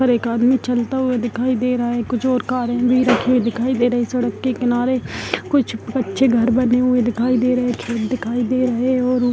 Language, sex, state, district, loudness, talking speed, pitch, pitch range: Hindi, female, Bihar, Darbhanga, -18 LUFS, 230 wpm, 245 Hz, 240-255 Hz